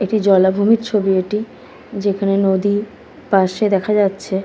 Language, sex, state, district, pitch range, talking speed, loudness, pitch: Bengali, female, West Bengal, Kolkata, 195-210 Hz, 120 wpm, -16 LUFS, 200 Hz